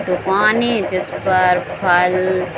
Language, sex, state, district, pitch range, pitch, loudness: Hindi, female, Bihar, Saran, 180-200 Hz, 185 Hz, -16 LUFS